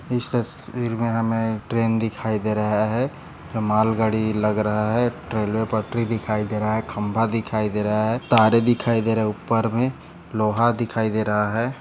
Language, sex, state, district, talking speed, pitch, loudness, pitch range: Hindi, male, Maharashtra, Dhule, 190 wpm, 110 Hz, -22 LUFS, 105-115 Hz